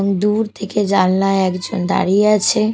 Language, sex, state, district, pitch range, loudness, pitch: Bengali, female, Odisha, Malkangiri, 190-210 Hz, -16 LUFS, 195 Hz